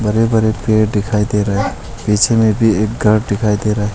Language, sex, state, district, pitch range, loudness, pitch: Hindi, male, Arunachal Pradesh, Longding, 105-110 Hz, -15 LUFS, 105 Hz